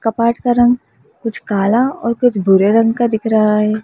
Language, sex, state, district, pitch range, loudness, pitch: Hindi, female, Uttar Pradesh, Lalitpur, 215-240 Hz, -14 LUFS, 225 Hz